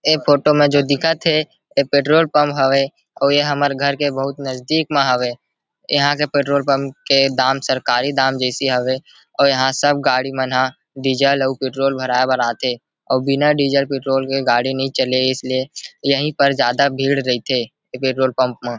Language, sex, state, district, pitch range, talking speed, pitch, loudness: Chhattisgarhi, male, Chhattisgarh, Rajnandgaon, 130-140 Hz, 180 wpm, 135 Hz, -17 LUFS